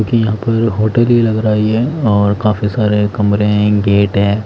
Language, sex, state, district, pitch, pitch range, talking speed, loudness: Hindi, male, Himachal Pradesh, Shimla, 105 Hz, 105-115 Hz, 215 wpm, -13 LUFS